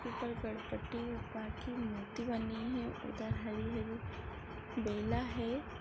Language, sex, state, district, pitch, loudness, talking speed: Hindi, female, Maharashtra, Aurangabad, 210 Hz, -41 LUFS, 115 wpm